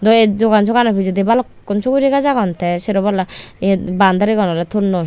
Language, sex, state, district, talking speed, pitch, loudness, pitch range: Chakma, female, Tripura, Dhalai, 200 wpm, 205 Hz, -15 LUFS, 190-225 Hz